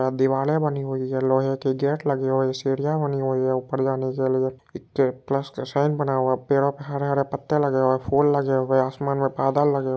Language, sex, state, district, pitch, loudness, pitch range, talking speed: Hindi, male, Bihar, Purnia, 135 Hz, -23 LUFS, 130-140 Hz, 260 wpm